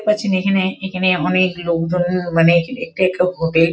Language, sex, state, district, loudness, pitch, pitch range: Bengali, female, West Bengal, Kolkata, -17 LUFS, 180 Hz, 170-190 Hz